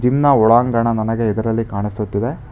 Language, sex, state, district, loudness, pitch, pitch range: Kannada, male, Karnataka, Bangalore, -17 LUFS, 115 Hz, 110-120 Hz